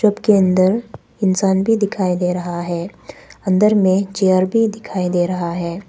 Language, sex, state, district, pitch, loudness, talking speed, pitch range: Hindi, female, Arunachal Pradesh, Papum Pare, 190 Hz, -17 LUFS, 165 wpm, 180-205 Hz